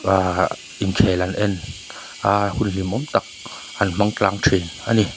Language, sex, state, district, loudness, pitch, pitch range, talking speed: Mizo, male, Mizoram, Aizawl, -21 LUFS, 100 Hz, 95-105 Hz, 160 wpm